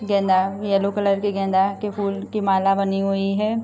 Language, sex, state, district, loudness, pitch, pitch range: Hindi, female, Uttar Pradesh, Gorakhpur, -21 LUFS, 195 Hz, 195-205 Hz